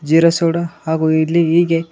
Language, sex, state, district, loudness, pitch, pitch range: Kannada, male, Karnataka, Koppal, -15 LUFS, 165 Hz, 160-170 Hz